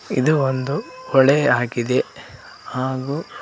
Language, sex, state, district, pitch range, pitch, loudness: Kannada, male, Karnataka, Koppal, 130-145 Hz, 135 Hz, -20 LUFS